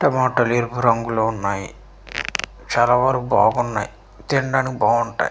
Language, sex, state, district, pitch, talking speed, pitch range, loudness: Telugu, male, Andhra Pradesh, Manyam, 120 Hz, 115 wpm, 115-130 Hz, -20 LUFS